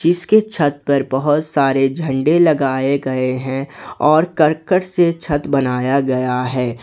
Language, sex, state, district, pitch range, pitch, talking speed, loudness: Hindi, male, Jharkhand, Garhwa, 130-160 Hz, 140 Hz, 140 wpm, -16 LUFS